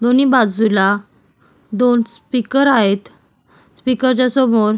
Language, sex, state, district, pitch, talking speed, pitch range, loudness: Marathi, female, Maharashtra, Solapur, 240 Hz, 115 wpm, 215-255 Hz, -15 LUFS